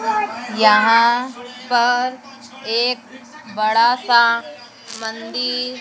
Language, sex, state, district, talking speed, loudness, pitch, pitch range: Hindi, female, Madhya Pradesh, Dhar, 60 wpm, -17 LUFS, 240 Hz, 225-250 Hz